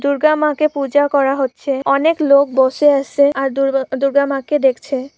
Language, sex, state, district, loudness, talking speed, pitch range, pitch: Bengali, female, West Bengal, Purulia, -15 LUFS, 175 wpm, 270-290 Hz, 275 Hz